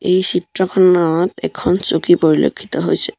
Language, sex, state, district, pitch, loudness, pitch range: Assamese, male, Assam, Sonitpur, 180 Hz, -15 LUFS, 175-185 Hz